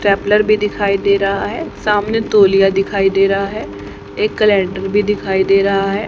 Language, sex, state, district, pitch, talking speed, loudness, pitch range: Hindi, female, Haryana, Charkhi Dadri, 200 Hz, 185 wpm, -14 LUFS, 195-210 Hz